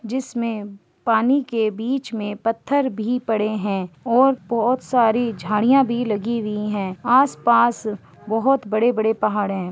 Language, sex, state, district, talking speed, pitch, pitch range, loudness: Hindi, female, Uttarakhand, Uttarkashi, 140 wpm, 225 Hz, 210-245 Hz, -20 LUFS